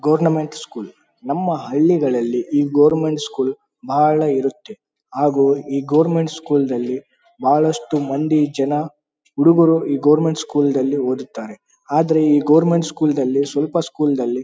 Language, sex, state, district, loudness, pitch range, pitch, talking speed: Kannada, male, Karnataka, Bellary, -18 LUFS, 140-155 Hz, 150 Hz, 135 wpm